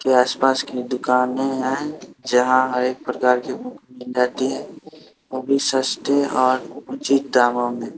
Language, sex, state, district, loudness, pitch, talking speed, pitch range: Hindi, male, Bihar, Patna, -20 LUFS, 130 Hz, 135 wpm, 125-135 Hz